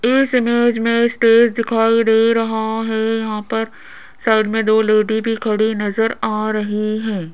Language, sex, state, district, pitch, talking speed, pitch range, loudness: Hindi, female, Rajasthan, Jaipur, 225 Hz, 165 wpm, 215-230 Hz, -16 LUFS